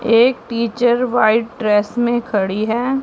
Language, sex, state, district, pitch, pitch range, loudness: Hindi, female, Punjab, Pathankot, 235 Hz, 220-245 Hz, -17 LUFS